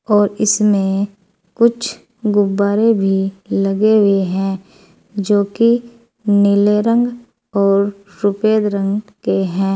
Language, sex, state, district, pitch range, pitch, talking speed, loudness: Hindi, female, Uttar Pradesh, Saharanpur, 195-215 Hz, 205 Hz, 105 wpm, -16 LUFS